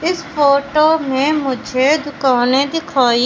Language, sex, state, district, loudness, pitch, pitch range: Hindi, female, Madhya Pradesh, Katni, -15 LUFS, 280 Hz, 260-305 Hz